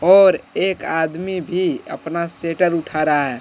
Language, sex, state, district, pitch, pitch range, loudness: Hindi, male, Jharkhand, Deoghar, 170 Hz, 160-185 Hz, -19 LUFS